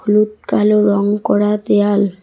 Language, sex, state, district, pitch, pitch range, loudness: Bengali, female, West Bengal, Cooch Behar, 205 Hz, 205-210 Hz, -15 LUFS